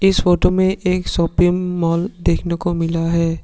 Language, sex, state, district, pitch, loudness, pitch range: Hindi, male, Assam, Sonitpur, 175 Hz, -18 LUFS, 165-180 Hz